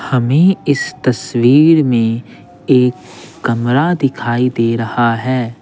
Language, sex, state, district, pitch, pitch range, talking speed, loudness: Hindi, male, Bihar, Patna, 125 Hz, 115-140 Hz, 105 wpm, -14 LUFS